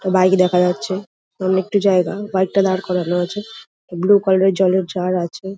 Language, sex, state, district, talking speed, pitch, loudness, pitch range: Bengali, female, West Bengal, Jhargram, 180 wpm, 185 Hz, -17 LUFS, 180-195 Hz